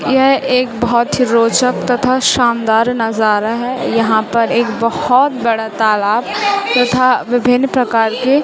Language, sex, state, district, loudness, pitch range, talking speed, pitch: Hindi, female, Chhattisgarh, Raipur, -13 LUFS, 230-255 Hz, 135 wpm, 245 Hz